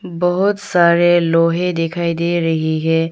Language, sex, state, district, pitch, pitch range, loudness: Hindi, female, Arunachal Pradesh, Longding, 170 Hz, 165-175 Hz, -16 LUFS